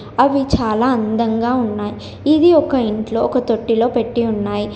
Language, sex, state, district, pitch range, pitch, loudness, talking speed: Telugu, female, Telangana, Komaram Bheem, 220-255 Hz, 230 Hz, -16 LUFS, 140 wpm